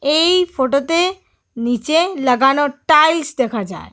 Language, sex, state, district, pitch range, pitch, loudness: Bengali, female, Assam, Hailakandi, 260-330 Hz, 290 Hz, -16 LUFS